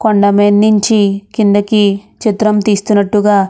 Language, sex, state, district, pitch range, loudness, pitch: Telugu, female, Andhra Pradesh, Krishna, 200-215 Hz, -11 LUFS, 205 Hz